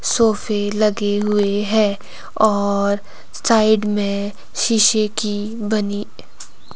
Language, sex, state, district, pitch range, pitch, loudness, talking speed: Hindi, female, Himachal Pradesh, Shimla, 205-215 Hz, 210 Hz, -18 LUFS, 90 wpm